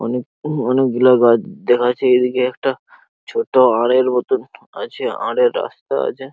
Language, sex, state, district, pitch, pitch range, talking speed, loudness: Bengali, male, West Bengal, Purulia, 125 Hz, 125-135 Hz, 115 wpm, -17 LUFS